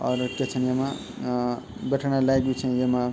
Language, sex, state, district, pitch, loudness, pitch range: Garhwali, male, Uttarakhand, Tehri Garhwal, 130 Hz, -26 LUFS, 125-135 Hz